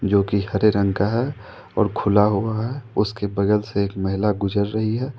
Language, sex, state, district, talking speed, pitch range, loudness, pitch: Hindi, male, Jharkhand, Ranchi, 210 wpm, 100-110 Hz, -21 LUFS, 105 Hz